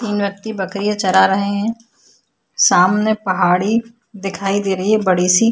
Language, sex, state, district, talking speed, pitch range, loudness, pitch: Hindi, female, Chhattisgarh, Korba, 150 wpm, 190-215 Hz, -16 LUFS, 200 Hz